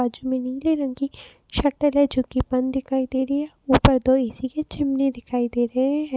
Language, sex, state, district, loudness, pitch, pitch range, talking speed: Hindi, female, Uttar Pradesh, Jyotiba Phule Nagar, -22 LUFS, 260 Hz, 255-280 Hz, 215 wpm